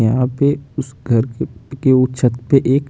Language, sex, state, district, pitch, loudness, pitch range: Hindi, male, Chandigarh, Chandigarh, 130 Hz, -17 LUFS, 125-140 Hz